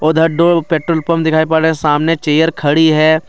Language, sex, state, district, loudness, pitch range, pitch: Hindi, male, Jharkhand, Deoghar, -13 LUFS, 155-165 Hz, 160 Hz